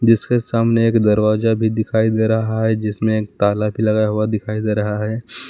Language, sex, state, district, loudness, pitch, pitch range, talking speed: Hindi, male, Jharkhand, Palamu, -18 LUFS, 110 Hz, 105-110 Hz, 205 wpm